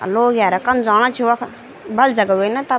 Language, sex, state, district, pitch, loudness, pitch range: Garhwali, female, Uttarakhand, Tehri Garhwal, 235 Hz, -16 LUFS, 210-250 Hz